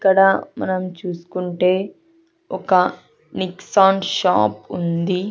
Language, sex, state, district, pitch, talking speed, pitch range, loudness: Telugu, female, Andhra Pradesh, Sri Satya Sai, 185 Hz, 80 wpm, 180-195 Hz, -19 LUFS